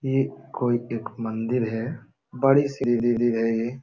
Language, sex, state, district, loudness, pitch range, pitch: Hindi, male, Uttar Pradesh, Jalaun, -24 LUFS, 115-135 Hz, 120 Hz